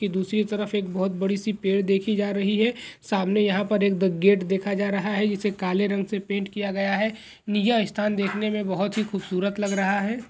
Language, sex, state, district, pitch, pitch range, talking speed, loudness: Hindi, male, West Bengal, Dakshin Dinajpur, 200 Hz, 195-210 Hz, 235 wpm, -24 LUFS